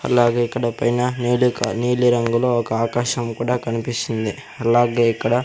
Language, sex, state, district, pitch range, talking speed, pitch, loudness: Telugu, male, Andhra Pradesh, Sri Satya Sai, 115-125 Hz, 130 wpm, 120 Hz, -20 LUFS